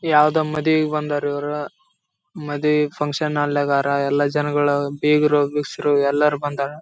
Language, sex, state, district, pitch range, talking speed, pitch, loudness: Kannada, male, Karnataka, Raichur, 145-150 Hz, 115 wpm, 150 Hz, -20 LUFS